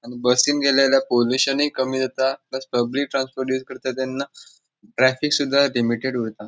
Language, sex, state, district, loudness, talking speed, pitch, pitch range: Konkani, male, Goa, North and South Goa, -21 LUFS, 120 wpm, 130 Hz, 125-140 Hz